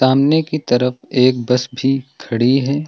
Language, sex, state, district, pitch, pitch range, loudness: Hindi, male, Uttar Pradesh, Lucknow, 130 Hz, 125-135 Hz, -16 LUFS